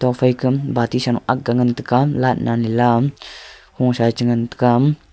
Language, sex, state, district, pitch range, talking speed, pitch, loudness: Wancho, male, Arunachal Pradesh, Longding, 120-130 Hz, 150 wpm, 125 Hz, -18 LUFS